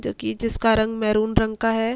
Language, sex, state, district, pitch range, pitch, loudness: Hindi, female, Uttar Pradesh, Jalaun, 215-225 Hz, 220 Hz, -22 LUFS